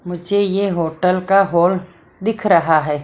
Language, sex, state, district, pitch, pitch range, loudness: Hindi, female, Maharashtra, Mumbai Suburban, 180 Hz, 170-195 Hz, -17 LUFS